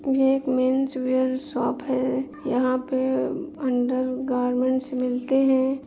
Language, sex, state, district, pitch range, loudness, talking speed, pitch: Hindi, female, Jharkhand, Sahebganj, 255-270 Hz, -24 LUFS, 125 wpm, 260 Hz